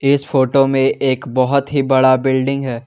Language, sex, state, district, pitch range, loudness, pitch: Hindi, male, Jharkhand, Garhwa, 130-140 Hz, -15 LUFS, 135 Hz